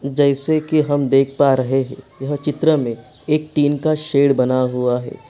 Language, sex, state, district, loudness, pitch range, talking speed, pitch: Hindi, male, Jharkhand, Sahebganj, -18 LUFS, 135-150 Hz, 190 wpm, 140 Hz